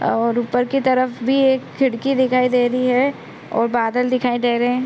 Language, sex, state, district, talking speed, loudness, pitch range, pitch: Hindi, female, Chhattisgarh, Korba, 195 wpm, -18 LUFS, 245-260 Hz, 250 Hz